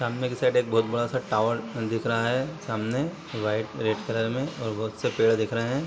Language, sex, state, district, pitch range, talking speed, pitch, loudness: Hindi, male, Bihar, Sitamarhi, 110-125 Hz, 245 wpm, 115 Hz, -27 LUFS